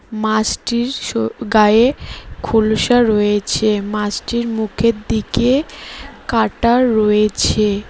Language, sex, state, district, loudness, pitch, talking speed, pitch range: Bengali, female, West Bengal, Cooch Behar, -16 LUFS, 220 Hz, 75 wpm, 210-235 Hz